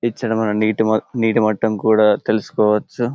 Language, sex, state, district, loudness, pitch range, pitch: Telugu, male, Telangana, Karimnagar, -17 LUFS, 110-115 Hz, 110 Hz